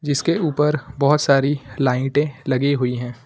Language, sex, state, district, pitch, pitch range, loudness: Hindi, male, Uttar Pradesh, Lucknow, 140 Hz, 130-150 Hz, -19 LUFS